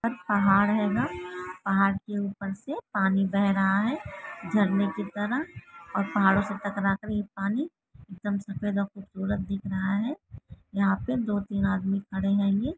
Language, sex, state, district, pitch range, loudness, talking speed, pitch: Hindi, female, Chhattisgarh, Rajnandgaon, 195-205 Hz, -27 LUFS, 180 wpm, 200 Hz